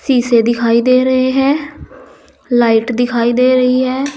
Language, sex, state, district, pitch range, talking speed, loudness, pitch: Hindi, female, Uttar Pradesh, Saharanpur, 235-260 Hz, 145 wpm, -13 LUFS, 255 Hz